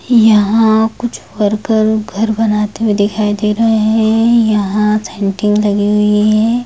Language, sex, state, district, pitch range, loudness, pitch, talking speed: Hindi, female, Bihar, Darbhanga, 210-220 Hz, -12 LUFS, 215 Hz, 135 wpm